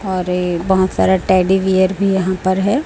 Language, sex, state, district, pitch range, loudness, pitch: Hindi, female, Chhattisgarh, Raipur, 185-190 Hz, -15 LUFS, 190 Hz